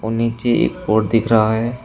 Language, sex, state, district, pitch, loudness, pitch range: Hindi, male, Uttar Pradesh, Shamli, 115 Hz, -17 LUFS, 110-115 Hz